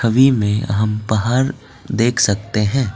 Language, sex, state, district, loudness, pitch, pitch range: Hindi, male, Assam, Kamrup Metropolitan, -17 LUFS, 115 Hz, 105-130 Hz